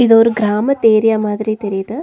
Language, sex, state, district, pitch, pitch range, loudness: Tamil, female, Tamil Nadu, Nilgiris, 220 Hz, 210-230 Hz, -14 LUFS